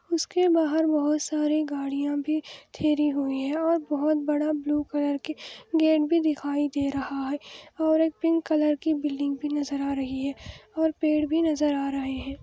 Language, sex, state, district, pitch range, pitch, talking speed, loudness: Hindi, female, Andhra Pradesh, Anantapur, 285-315 Hz, 300 Hz, 195 wpm, -26 LUFS